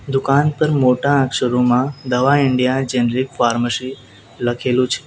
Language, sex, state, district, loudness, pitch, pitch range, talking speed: Gujarati, male, Gujarat, Valsad, -17 LUFS, 130 Hz, 125-135 Hz, 120 wpm